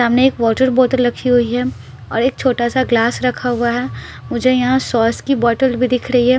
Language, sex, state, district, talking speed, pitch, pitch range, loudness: Hindi, female, Bihar, Patna, 225 wpm, 250 Hz, 240-255 Hz, -16 LUFS